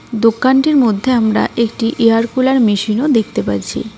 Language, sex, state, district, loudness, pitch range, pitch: Bengali, female, West Bengal, Cooch Behar, -14 LUFS, 220-255 Hz, 230 Hz